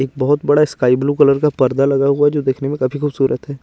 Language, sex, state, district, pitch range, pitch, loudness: Hindi, male, Chandigarh, Chandigarh, 135-145 Hz, 140 Hz, -15 LUFS